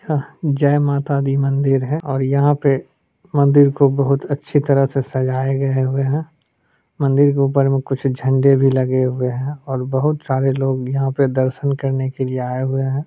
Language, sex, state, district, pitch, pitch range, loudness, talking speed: Hindi, male, Bihar, Supaul, 135 Hz, 130-140 Hz, -18 LUFS, 195 wpm